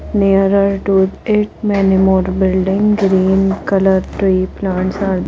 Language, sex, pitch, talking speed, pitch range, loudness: English, female, 195 Hz, 135 wpm, 190-200 Hz, -14 LUFS